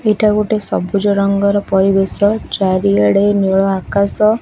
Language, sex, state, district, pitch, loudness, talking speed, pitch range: Odia, female, Odisha, Khordha, 200 Hz, -14 LUFS, 110 wpm, 195-210 Hz